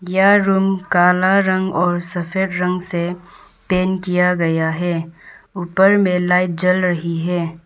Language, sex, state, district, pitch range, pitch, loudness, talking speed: Hindi, female, Arunachal Pradesh, Papum Pare, 175-190 Hz, 180 Hz, -17 LUFS, 140 wpm